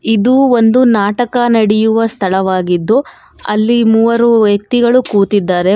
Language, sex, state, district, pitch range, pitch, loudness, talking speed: Kannada, female, Karnataka, Bangalore, 205-240 Hz, 225 Hz, -11 LUFS, 95 wpm